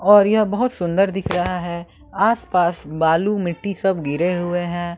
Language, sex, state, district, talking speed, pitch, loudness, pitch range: Hindi, male, Bihar, West Champaran, 180 wpm, 180 Hz, -19 LUFS, 175-200 Hz